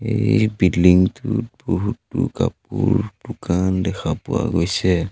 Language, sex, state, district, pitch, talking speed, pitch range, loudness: Assamese, male, Assam, Sonitpur, 105 Hz, 105 wpm, 90-120 Hz, -20 LUFS